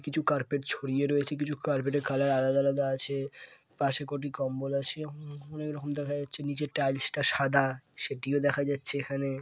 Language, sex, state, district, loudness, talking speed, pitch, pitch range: Bengali, female, West Bengal, Purulia, -29 LUFS, 185 wpm, 140 Hz, 135-145 Hz